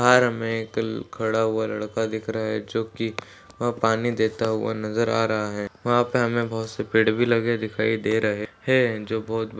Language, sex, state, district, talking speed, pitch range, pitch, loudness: Hindi, male, Maharashtra, Solapur, 200 wpm, 110-115 Hz, 110 Hz, -24 LUFS